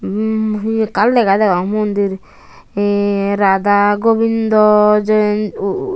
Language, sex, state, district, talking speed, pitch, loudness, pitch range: Chakma, female, Tripura, Unakoti, 100 wpm, 210 Hz, -14 LUFS, 200-220 Hz